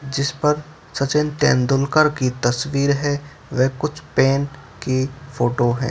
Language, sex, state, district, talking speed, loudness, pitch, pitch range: Hindi, male, Bihar, Purnia, 130 wpm, -20 LUFS, 140 Hz, 130-150 Hz